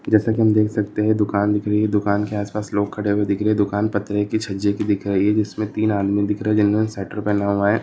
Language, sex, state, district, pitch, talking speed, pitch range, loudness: Marwari, male, Rajasthan, Nagaur, 105 Hz, 275 wpm, 100-105 Hz, -20 LUFS